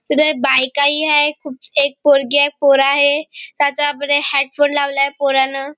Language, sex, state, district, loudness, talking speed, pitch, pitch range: Marathi, female, Maharashtra, Nagpur, -14 LUFS, 155 wpm, 285 Hz, 275-290 Hz